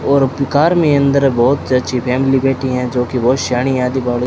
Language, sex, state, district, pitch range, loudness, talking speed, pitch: Hindi, male, Rajasthan, Bikaner, 125-135 Hz, -14 LUFS, 210 wpm, 130 Hz